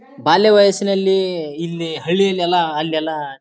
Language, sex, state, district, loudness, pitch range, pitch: Kannada, male, Karnataka, Bijapur, -17 LUFS, 160-195 Hz, 175 Hz